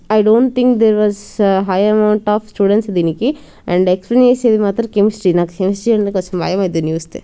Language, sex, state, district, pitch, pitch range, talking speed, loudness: Telugu, female, Telangana, Nalgonda, 205 Hz, 185-220 Hz, 180 wpm, -14 LUFS